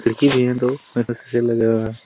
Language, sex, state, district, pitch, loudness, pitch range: Hindi, male, Jharkhand, Jamtara, 120 Hz, -19 LUFS, 115-125 Hz